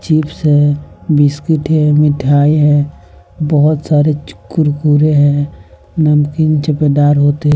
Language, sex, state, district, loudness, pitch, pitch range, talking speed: Hindi, male, Bihar, West Champaran, -12 LUFS, 150 Hz, 145-155 Hz, 110 wpm